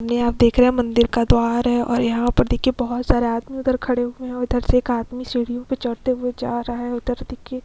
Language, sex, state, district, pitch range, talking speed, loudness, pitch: Hindi, female, Uttar Pradesh, Etah, 240-250 Hz, 265 wpm, -20 LUFS, 245 Hz